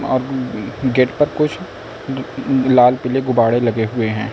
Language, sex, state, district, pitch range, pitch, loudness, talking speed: Hindi, male, Uttar Pradesh, Lucknow, 115-135 Hz, 130 Hz, -17 LUFS, 125 wpm